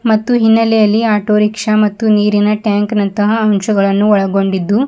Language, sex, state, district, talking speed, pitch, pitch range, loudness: Kannada, female, Karnataka, Bidar, 125 wpm, 210 Hz, 205-220 Hz, -12 LUFS